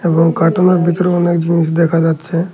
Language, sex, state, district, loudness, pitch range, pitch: Bengali, male, Tripura, Unakoti, -13 LUFS, 165-175 Hz, 170 Hz